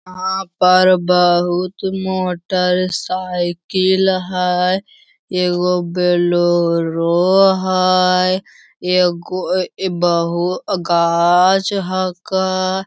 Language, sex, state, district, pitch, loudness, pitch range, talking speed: Hindi, male, Bihar, Lakhisarai, 180 Hz, -16 LUFS, 175-185 Hz, 60 wpm